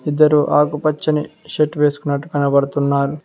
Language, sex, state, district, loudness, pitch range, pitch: Telugu, male, Telangana, Mahabubabad, -17 LUFS, 140-150 Hz, 150 Hz